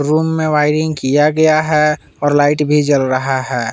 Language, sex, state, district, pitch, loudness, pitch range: Hindi, male, Jharkhand, Palamu, 150 Hz, -14 LUFS, 140-155 Hz